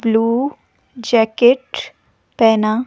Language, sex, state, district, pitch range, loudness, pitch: Hindi, female, Himachal Pradesh, Shimla, 225-245 Hz, -15 LUFS, 230 Hz